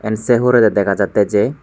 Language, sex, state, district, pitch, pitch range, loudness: Chakma, male, Tripura, West Tripura, 110 Hz, 100-120 Hz, -14 LUFS